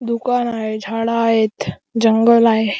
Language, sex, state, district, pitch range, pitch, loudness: Marathi, male, Maharashtra, Chandrapur, 220-235 Hz, 230 Hz, -16 LUFS